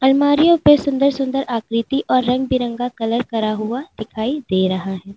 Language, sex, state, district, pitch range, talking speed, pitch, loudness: Hindi, female, Uttar Pradesh, Lalitpur, 225-275 Hz, 175 wpm, 250 Hz, -18 LUFS